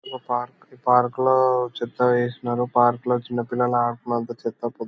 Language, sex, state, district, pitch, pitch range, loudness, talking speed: Telugu, male, Andhra Pradesh, Anantapur, 120 Hz, 120-125 Hz, -22 LUFS, 170 wpm